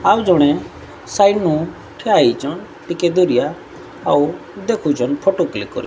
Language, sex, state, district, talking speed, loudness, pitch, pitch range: Odia, female, Odisha, Sambalpur, 135 wpm, -17 LUFS, 180 Hz, 165-200 Hz